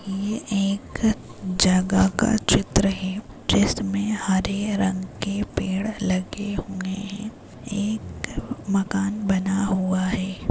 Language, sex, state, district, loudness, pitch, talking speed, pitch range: Hindi, male, Rajasthan, Nagaur, -24 LUFS, 195 Hz, 110 wpm, 190-205 Hz